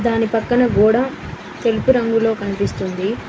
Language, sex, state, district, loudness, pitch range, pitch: Telugu, female, Telangana, Mahabubabad, -17 LUFS, 210-240 Hz, 225 Hz